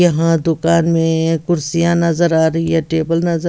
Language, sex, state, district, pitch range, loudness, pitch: Hindi, female, Bihar, West Champaran, 165-170 Hz, -15 LUFS, 165 Hz